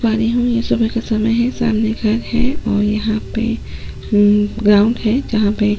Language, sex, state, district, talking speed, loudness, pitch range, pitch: Hindi, female, Goa, North and South Goa, 205 wpm, -16 LUFS, 210-230 Hz, 220 Hz